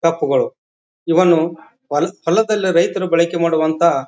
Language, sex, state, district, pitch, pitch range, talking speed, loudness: Kannada, male, Karnataka, Bijapur, 170 Hz, 165-185 Hz, 90 wpm, -17 LUFS